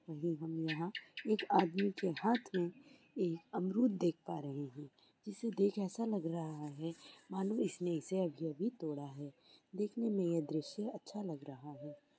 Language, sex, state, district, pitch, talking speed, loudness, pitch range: Hindi, female, West Bengal, Dakshin Dinajpur, 180 Hz, 155 wpm, -39 LUFS, 160-205 Hz